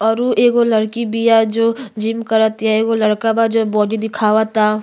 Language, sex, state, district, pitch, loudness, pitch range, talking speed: Bhojpuri, female, Uttar Pradesh, Gorakhpur, 225 Hz, -15 LUFS, 215-230 Hz, 185 wpm